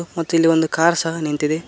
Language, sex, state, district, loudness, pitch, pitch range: Kannada, male, Karnataka, Koppal, -18 LUFS, 165 Hz, 160-165 Hz